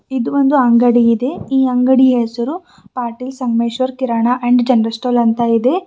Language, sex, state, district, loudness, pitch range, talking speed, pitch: Kannada, female, Karnataka, Bidar, -14 LUFS, 235-260 Hz, 145 wpm, 250 Hz